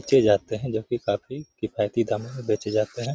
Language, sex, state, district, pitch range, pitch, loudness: Hindi, male, Bihar, Gaya, 110-130 Hz, 115 Hz, -25 LUFS